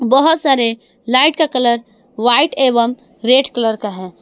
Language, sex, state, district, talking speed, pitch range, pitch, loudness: Hindi, female, Jharkhand, Garhwa, 155 wpm, 230-270 Hz, 245 Hz, -14 LUFS